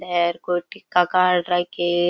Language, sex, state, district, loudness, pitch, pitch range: Rajasthani, female, Rajasthan, Churu, -21 LUFS, 175 Hz, 175-180 Hz